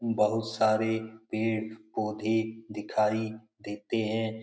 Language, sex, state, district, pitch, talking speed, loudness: Hindi, male, Bihar, Lakhisarai, 110 Hz, 80 wpm, -30 LUFS